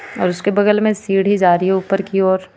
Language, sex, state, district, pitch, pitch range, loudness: Hindi, female, Jharkhand, Ranchi, 195 Hz, 185-205 Hz, -16 LUFS